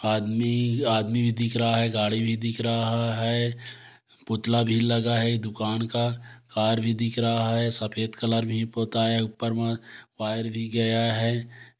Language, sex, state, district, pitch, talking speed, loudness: Hindi, male, Chhattisgarh, Korba, 115 Hz, 170 wpm, -25 LUFS